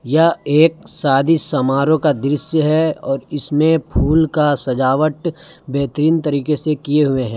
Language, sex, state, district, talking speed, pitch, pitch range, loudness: Hindi, male, Jharkhand, Palamu, 145 wpm, 150 Hz, 140-160 Hz, -16 LUFS